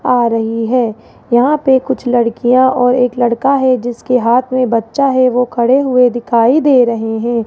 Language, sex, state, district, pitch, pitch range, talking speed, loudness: Hindi, female, Rajasthan, Jaipur, 245 Hz, 235-255 Hz, 185 wpm, -12 LUFS